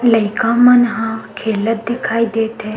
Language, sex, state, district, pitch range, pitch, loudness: Chhattisgarhi, female, Chhattisgarh, Sukma, 220-235 Hz, 225 Hz, -15 LUFS